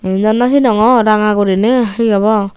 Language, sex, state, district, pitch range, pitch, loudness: Chakma, female, Tripura, Unakoti, 205-235 Hz, 215 Hz, -12 LUFS